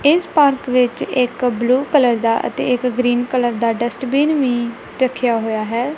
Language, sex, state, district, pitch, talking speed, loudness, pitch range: Punjabi, female, Punjab, Kapurthala, 250 Hz, 170 wpm, -17 LUFS, 240-265 Hz